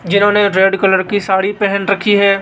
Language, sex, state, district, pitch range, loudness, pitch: Hindi, male, Rajasthan, Jaipur, 195-205 Hz, -13 LUFS, 200 Hz